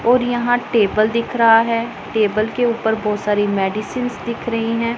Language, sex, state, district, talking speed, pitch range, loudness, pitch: Hindi, female, Punjab, Pathankot, 180 wpm, 215-240 Hz, -18 LUFS, 230 Hz